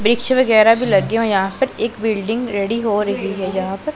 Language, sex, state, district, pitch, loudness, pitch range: Hindi, female, Punjab, Pathankot, 220 Hz, -17 LUFS, 200-235 Hz